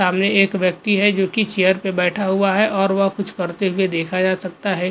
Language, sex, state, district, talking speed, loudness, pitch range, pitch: Hindi, male, Goa, North and South Goa, 245 wpm, -18 LUFS, 185-200 Hz, 190 Hz